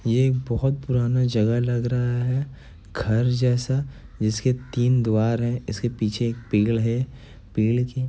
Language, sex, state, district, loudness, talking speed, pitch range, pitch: Hindi, male, Bihar, Gopalganj, -23 LUFS, 155 wpm, 115-125 Hz, 120 Hz